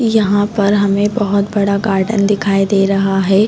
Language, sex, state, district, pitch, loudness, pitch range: Hindi, female, Chhattisgarh, Raigarh, 200 Hz, -14 LUFS, 195-205 Hz